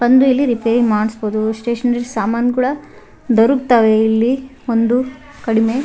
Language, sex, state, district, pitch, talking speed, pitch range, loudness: Kannada, female, Karnataka, Raichur, 240 Hz, 125 wpm, 225-255 Hz, -15 LUFS